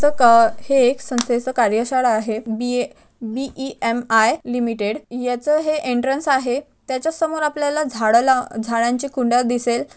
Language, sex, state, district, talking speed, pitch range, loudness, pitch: Marathi, male, Maharashtra, Chandrapur, 120 wpm, 235-275 Hz, -19 LUFS, 245 Hz